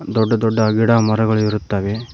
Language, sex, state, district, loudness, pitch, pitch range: Kannada, male, Karnataka, Koppal, -17 LUFS, 110 Hz, 105-115 Hz